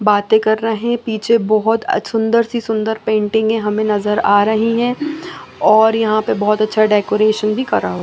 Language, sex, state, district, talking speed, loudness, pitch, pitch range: Hindi, female, Chandigarh, Chandigarh, 170 wpm, -15 LUFS, 220 Hz, 215-225 Hz